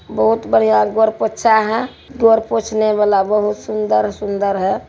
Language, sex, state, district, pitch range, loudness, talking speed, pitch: Hindi, male, Bihar, Araria, 195-220 Hz, -16 LUFS, 135 wpm, 210 Hz